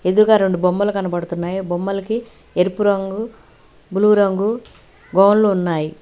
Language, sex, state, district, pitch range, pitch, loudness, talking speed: Telugu, female, Telangana, Hyderabad, 180-210 Hz, 195 Hz, -18 LUFS, 120 wpm